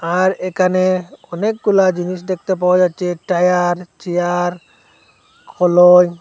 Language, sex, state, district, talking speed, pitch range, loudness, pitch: Bengali, male, Assam, Hailakandi, 85 wpm, 175-185 Hz, -16 LUFS, 180 Hz